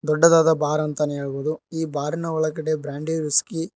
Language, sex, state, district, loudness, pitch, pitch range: Kannada, male, Karnataka, Koppal, -22 LUFS, 155 Hz, 150-160 Hz